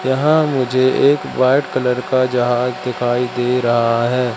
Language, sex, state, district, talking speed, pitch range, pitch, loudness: Hindi, male, Madhya Pradesh, Katni, 150 wpm, 125-130 Hz, 125 Hz, -16 LUFS